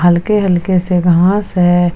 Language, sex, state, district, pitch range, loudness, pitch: Hindi, female, Jharkhand, Palamu, 175-190 Hz, -12 LUFS, 180 Hz